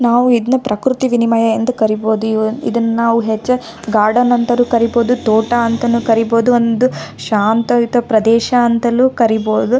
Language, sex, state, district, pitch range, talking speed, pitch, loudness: Kannada, female, Karnataka, Raichur, 225-245 Hz, 135 wpm, 235 Hz, -14 LUFS